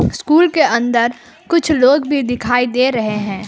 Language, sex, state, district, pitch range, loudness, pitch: Hindi, female, Jharkhand, Palamu, 235-295 Hz, -14 LUFS, 245 Hz